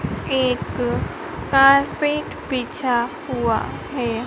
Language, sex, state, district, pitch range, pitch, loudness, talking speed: Hindi, female, Madhya Pradesh, Dhar, 240-275 Hz, 260 Hz, -21 LUFS, 70 wpm